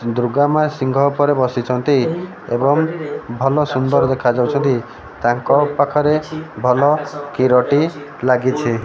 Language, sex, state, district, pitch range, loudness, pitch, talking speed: Odia, male, Odisha, Malkangiri, 125-145 Hz, -17 LUFS, 140 Hz, 100 wpm